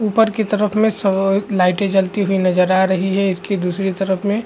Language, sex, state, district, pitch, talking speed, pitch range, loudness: Hindi, male, Chhattisgarh, Raigarh, 195 Hz, 230 wpm, 190-210 Hz, -17 LUFS